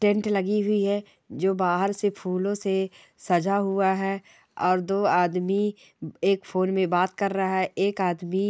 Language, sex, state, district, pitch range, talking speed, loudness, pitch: Hindi, female, Chhattisgarh, Rajnandgaon, 185-200 Hz, 175 wpm, -25 LUFS, 195 Hz